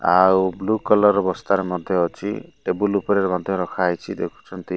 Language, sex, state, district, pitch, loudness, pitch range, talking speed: Odia, male, Odisha, Malkangiri, 95 Hz, -21 LUFS, 90-100 Hz, 165 wpm